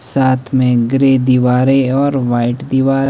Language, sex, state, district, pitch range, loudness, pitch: Hindi, male, Himachal Pradesh, Shimla, 125-135 Hz, -13 LUFS, 130 Hz